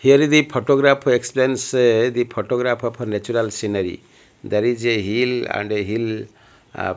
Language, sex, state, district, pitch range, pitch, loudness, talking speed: English, male, Odisha, Malkangiri, 110-130 Hz, 120 Hz, -19 LUFS, 170 wpm